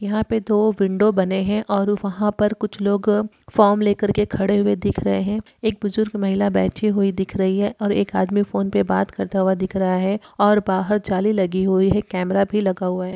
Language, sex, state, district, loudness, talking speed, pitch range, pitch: Hindi, female, Uttar Pradesh, Varanasi, -20 LUFS, 225 wpm, 190-210 Hz, 200 Hz